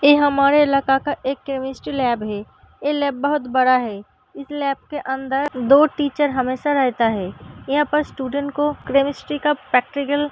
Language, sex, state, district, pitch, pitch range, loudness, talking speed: Hindi, female, Uttar Pradesh, Deoria, 275 Hz, 260-290 Hz, -20 LUFS, 175 wpm